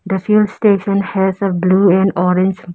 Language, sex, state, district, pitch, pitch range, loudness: English, female, Arunachal Pradesh, Lower Dibang Valley, 190 Hz, 185-200 Hz, -14 LUFS